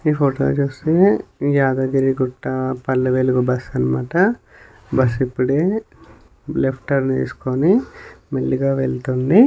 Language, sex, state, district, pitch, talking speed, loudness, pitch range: Telugu, male, Telangana, Nalgonda, 130 Hz, 115 wpm, -19 LUFS, 125-145 Hz